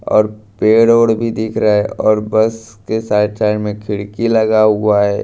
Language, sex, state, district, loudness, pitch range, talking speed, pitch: Hindi, male, Bihar, Katihar, -14 LUFS, 105-110 Hz, 195 wpm, 110 Hz